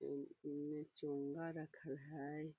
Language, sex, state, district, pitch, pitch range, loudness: Magahi, female, Bihar, Gaya, 150 Hz, 140-155 Hz, -48 LUFS